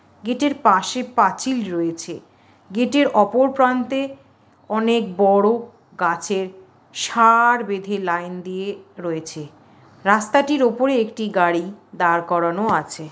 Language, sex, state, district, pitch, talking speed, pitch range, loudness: Bengali, female, West Bengal, Kolkata, 200 Hz, 100 wpm, 170-240 Hz, -19 LUFS